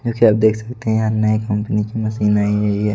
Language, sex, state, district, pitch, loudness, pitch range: Hindi, male, Delhi, New Delhi, 110 Hz, -17 LUFS, 105-110 Hz